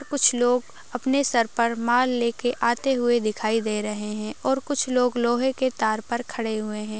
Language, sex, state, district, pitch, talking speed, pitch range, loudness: Hindi, female, Uttar Pradesh, Ghazipur, 240 Hz, 205 wpm, 220-255 Hz, -24 LUFS